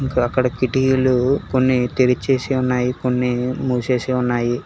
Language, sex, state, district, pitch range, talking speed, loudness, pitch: Telugu, male, Telangana, Hyderabad, 125-130 Hz, 105 wpm, -19 LUFS, 125 Hz